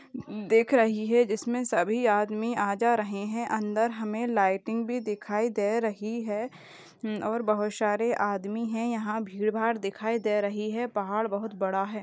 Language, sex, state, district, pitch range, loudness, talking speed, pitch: Hindi, female, Uttar Pradesh, Jalaun, 210-230 Hz, -28 LUFS, 175 wpm, 220 Hz